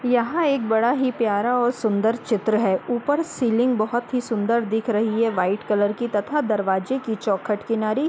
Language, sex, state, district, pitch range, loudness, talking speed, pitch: Hindi, female, Uttar Pradesh, Muzaffarnagar, 215-245 Hz, -22 LUFS, 195 wpm, 225 Hz